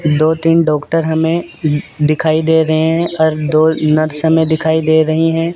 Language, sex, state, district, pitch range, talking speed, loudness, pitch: Hindi, male, Chandigarh, Chandigarh, 155-165 Hz, 175 wpm, -13 LUFS, 160 Hz